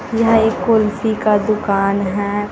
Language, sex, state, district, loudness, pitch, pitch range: Hindi, female, Chhattisgarh, Raipur, -16 LUFS, 210 Hz, 200-220 Hz